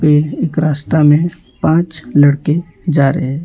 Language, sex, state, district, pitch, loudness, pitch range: Hindi, male, West Bengal, Alipurduar, 150 Hz, -14 LUFS, 145-165 Hz